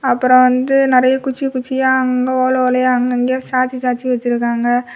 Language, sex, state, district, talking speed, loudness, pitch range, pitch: Tamil, female, Tamil Nadu, Kanyakumari, 135 wpm, -15 LUFS, 250-260 Hz, 255 Hz